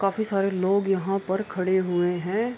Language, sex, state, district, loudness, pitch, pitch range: Hindi, female, Bihar, Kishanganj, -25 LUFS, 195 Hz, 185-200 Hz